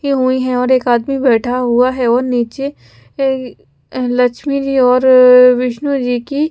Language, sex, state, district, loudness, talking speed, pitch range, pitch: Hindi, female, Punjab, Pathankot, -13 LUFS, 155 wpm, 250-270 Hz, 255 Hz